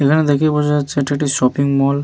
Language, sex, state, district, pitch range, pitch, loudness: Bengali, male, West Bengal, Jhargram, 140-145 Hz, 140 Hz, -16 LUFS